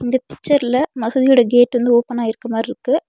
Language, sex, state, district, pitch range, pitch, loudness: Tamil, female, Tamil Nadu, Nilgiris, 240-260 Hz, 245 Hz, -16 LUFS